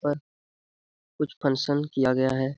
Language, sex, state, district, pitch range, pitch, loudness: Hindi, male, Bihar, Lakhisarai, 130-145 Hz, 140 Hz, -26 LUFS